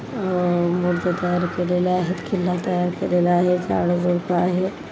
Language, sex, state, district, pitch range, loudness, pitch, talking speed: Marathi, female, Maharashtra, Dhule, 175-180 Hz, -21 LUFS, 180 Hz, 145 wpm